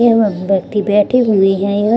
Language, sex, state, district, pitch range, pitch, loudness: Hindi, female, Bihar, Gaya, 195-225 Hz, 205 Hz, -14 LUFS